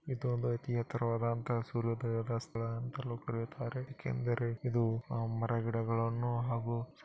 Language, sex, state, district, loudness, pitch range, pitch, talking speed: Kannada, male, Karnataka, Bellary, -36 LUFS, 115-120 Hz, 120 Hz, 130 wpm